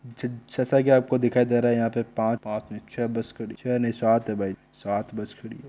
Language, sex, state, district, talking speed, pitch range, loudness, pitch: Hindi, male, Rajasthan, Nagaur, 230 wpm, 110-125 Hz, -25 LUFS, 115 Hz